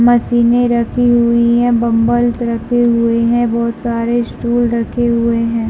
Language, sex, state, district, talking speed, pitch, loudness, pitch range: Hindi, female, Chhattisgarh, Bilaspur, 145 wpm, 235 Hz, -14 LUFS, 235-240 Hz